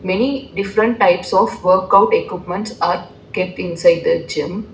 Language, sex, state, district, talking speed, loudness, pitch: English, female, Telangana, Hyderabad, 140 wpm, -17 LUFS, 225 Hz